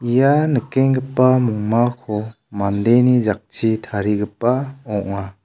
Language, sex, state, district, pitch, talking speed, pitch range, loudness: Garo, male, Meghalaya, South Garo Hills, 115 Hz, 75 wpm, 105-130 Hz, -18 LUFS